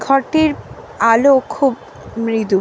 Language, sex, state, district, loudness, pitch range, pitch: Bengali, female, West Bengal, North 24 Parganas, -15 LUFS, 225-280 Hz, 260 Hz